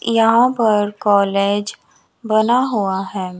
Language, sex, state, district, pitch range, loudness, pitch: Hindi, female, Chandigarh, Chandigarh, 200-225 Hz, -16 LUFS, 210 Hz